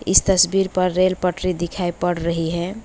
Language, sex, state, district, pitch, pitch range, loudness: Hindi, female, West Bengal, Alipurduar, 180 Hz, 175-185 Hz, -19 LUFS